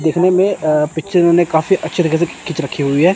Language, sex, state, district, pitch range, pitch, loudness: Hindi, male, Chandigarh, Chandigarh, 155-180 Hz, 165 Hz, -15 LUFS